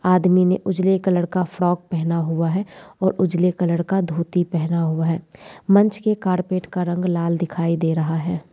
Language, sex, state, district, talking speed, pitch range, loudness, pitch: Hindi, female, Bihar, East Champaran, 190 wpm, 170-185 Hz, -20 LUFS, 175 Hz